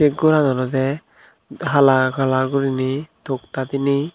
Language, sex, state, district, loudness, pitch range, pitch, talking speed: Chakma, male, Tripura, Dhalai, -19 LUFS, 130-145 Hz, 135 Hz, 100 wpm